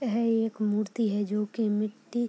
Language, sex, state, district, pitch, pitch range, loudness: Hindi, female, Bihar, Purnia, 215 Hz, 210-230 Hz, -28 LUFS